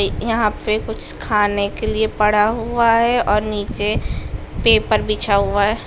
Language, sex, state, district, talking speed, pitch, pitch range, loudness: Hindi, female, Chhattisgarh, Bilaspur, 155 wpm, 215 Hz, 210-225 Hz, -17 LUFS